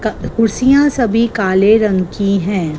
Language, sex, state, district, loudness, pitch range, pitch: Hindi, female, Gujarat, Gandhinagar, -13 LUFS, 195-230 Hz, 215 Hz